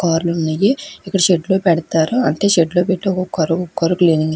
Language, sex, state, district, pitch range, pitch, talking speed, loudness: Telugu, female, Andhra Pradesh, Krishna, 165-190 Hz, 175 Hz, 235 wpm, -16 LUFS